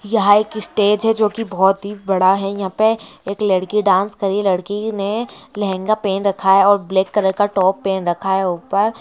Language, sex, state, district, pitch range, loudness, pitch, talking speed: Hindi, female, Andhra Pradesh, Krishna, 190-210 Hz, -17 LUFS, 200 Hz, 215 wpm